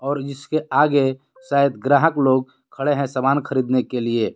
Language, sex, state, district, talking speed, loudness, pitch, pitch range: Hindi, male, Jharkhand, Garhwa, 165 wpm, -20 LUFS, 135 Hz, 130-145 Hz